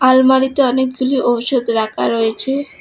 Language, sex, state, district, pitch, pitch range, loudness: Bengali, female, West Bengal, Alipurduar, 260 Hz, 235-265 Hz, -15 LUFS